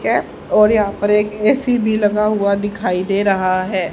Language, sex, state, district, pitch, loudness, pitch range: Hindi, female, Haryana, Rohtak, 205 Hz, -16 LUFS, 195-210 Hz